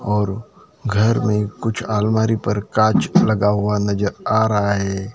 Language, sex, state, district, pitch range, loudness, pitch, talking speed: Hindi, male, Maharashtra, Gondia, 100-110 Hz, -18 LUFS, 105 Hz, 150 wpm